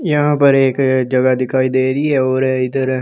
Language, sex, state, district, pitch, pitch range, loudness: Hindi, male, Delhi, New Delhi, 130 Hz, 130-135 Hz, -15 LUFS